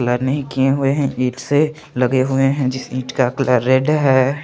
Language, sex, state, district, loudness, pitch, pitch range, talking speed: Hindi, male, Chandigarh, Chandigarh, -17 LUFS, 130 Hz, 130-140 Hz, 215 wpm